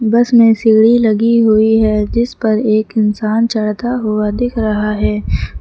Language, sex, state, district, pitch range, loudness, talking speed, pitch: Hindi, female, Uttar Pradesh, Lucknow, 215-230 Hz, -13 LUFS, 160 wpm, 220 Hz